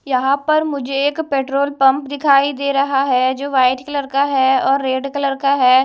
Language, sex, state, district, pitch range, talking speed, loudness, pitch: Hindi, female, Odisha, Malkangiri, 265-280 Hz, 205 wpm, -16 LUFS, 275 Hz